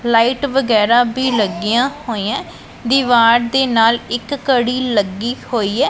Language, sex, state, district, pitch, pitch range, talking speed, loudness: Punjabi, female, Punjab, Pathankot, 240 Hz, 225-255 Hz, 130 wpm, -15 LUFS